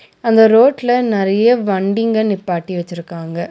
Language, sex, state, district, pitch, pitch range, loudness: Tamil, female, Tamil Nadu, Nilgiris, 205 Hz, 175-230 Hz, -14 LUFS